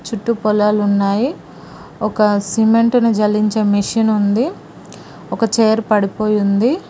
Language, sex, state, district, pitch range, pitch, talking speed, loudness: Telugu, female, Telangana, Mahabubabad, 210-225 Hz, 215 Hz, 105 wpm, -15 LUFS